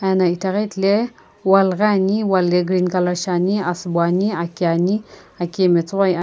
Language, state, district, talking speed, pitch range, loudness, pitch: Sumi, Nagaland, Kohima, 190 wpm, 175-195 Hz, -18 LUFS, 185 Hz